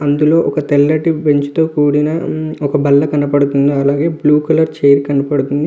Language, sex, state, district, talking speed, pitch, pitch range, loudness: Telugu, male, Andhra Pradesh, Visakhapatnam, 180 wpm, 145 Hz, 145-155 Hz, -13 LUFS